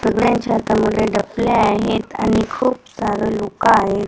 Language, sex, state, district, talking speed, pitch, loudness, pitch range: Marathi, female, Maharashtra, Gondia, 130 wpm, 220 Hz, -17 LUFS, 210-230 Hz